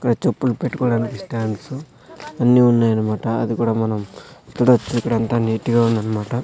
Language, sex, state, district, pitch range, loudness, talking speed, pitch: Telugu, male, Andhra Pradesh, Sri Satya Sai, 110-125 Hz, -19 LUFS, 170 wpm, 115 Hz